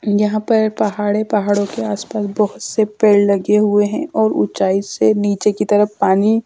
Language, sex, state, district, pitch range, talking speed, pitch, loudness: Hindi, female, Madhya Pradesh, Dhar, 200-215 Hz, 185 wpm, 205 Hz, -16 LUFS